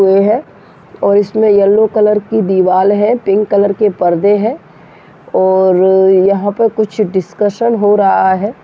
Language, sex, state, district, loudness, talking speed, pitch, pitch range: Hindi, male, Bihar, Jahanabad, -11 LUFS, 155 wpm, 205 Hz, 190-215 Hz